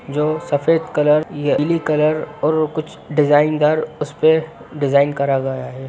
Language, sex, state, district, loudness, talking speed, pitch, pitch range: Hindi, male, Bihar, Sitamarhi, -18 LUFS, 140 wpm, 150 Hz, 145-155 Hz